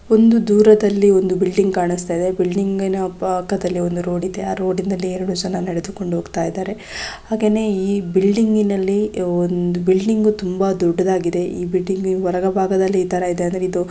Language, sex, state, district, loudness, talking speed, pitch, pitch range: Kannada, female, Karnataka, Gulbarga, -18 LUFS, 125 wpm, 190 Hz, 180-195 Hz